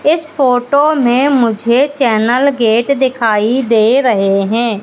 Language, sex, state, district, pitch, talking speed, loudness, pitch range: Hindi, female, Madhya Pradesh, Katni, 245 Hz, 125 wpm, -12 LUFS, 225-275 Hz